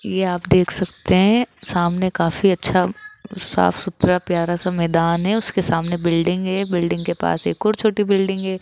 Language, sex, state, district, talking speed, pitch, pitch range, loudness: Hindi, female, Rajasthan, Jaipur, 180 wpm, 180 Hz, 170-190 Hz, -19 LUFS